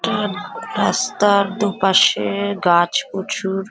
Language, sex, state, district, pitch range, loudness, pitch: Bengali, female, West Bengal, Paschim Medinipur, 190-205 Hz, -18 LUFS, 200 Hz